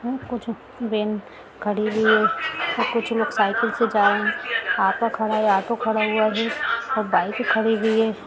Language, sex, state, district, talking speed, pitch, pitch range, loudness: Hindi, female, Bihar, Gaya, 180 wpm, 220 Hz, 215-230 Hz, -22 LUFS